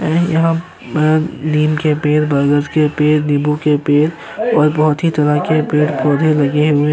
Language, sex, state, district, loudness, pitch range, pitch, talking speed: Hindi, male, Uttar Pradesh, Jyotiba Phule Nagar, -14 LUFS, 150-155 Hz, 150 Hz, 200 wpm